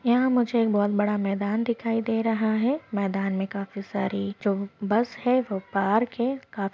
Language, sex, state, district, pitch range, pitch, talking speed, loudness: Hindi, female, Maharashtra, Pune, 200-235 Hz, 210 Hz, 180 wpm, -26 LUFS